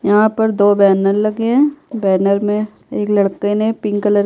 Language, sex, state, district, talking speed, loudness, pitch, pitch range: Hindi, female, Bihar, Kishanganj, 180 wpm, -15 LUFS, 210 Hz, 200-220 Hz